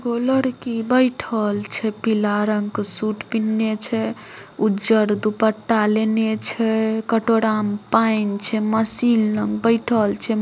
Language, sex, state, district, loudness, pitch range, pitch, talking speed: Maithili, female, Bihar, Samastipur, -20 LUFS, 215-225 Hz, 220 Hz, 125 wpm